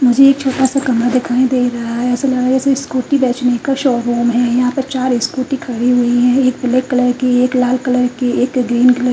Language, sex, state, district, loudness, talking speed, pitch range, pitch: Hindi, female, Punjab, Fazilka, -14 LUFS, 245 wpm, 245-260 Hz, 250 Hz